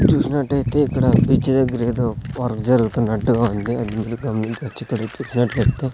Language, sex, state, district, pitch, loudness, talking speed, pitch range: Telugu, male, Andhra Pradesh, Sri Satya Sai, 120 Hz, -20 LUFS, 120 wpm, 115-135 Hz